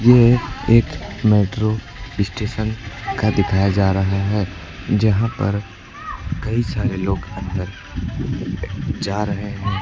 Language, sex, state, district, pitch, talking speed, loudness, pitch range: Hindi, male, Uttar Pradesh, Lucknow, 105 Hz, 110 wpm, -20 LUFS, 95-110 Hz